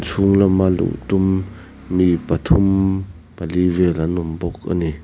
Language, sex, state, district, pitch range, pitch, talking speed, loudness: Mizo, male, Mizoram, Aizawl, 85-95 Hz, 90 Hz, 140 wpm, -18 LUFS